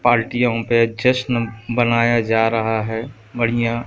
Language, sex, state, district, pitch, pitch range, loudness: Hindi, male, Madhya Pradesh, Katni, 115 Hz, 115-120 Hz, -19 LUFS